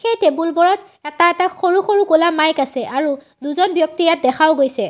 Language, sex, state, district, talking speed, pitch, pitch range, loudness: Assamese, female, Assam, Sonitpur, 195 wpm, 330 Hz, 290-365 Hz, -16 LUFS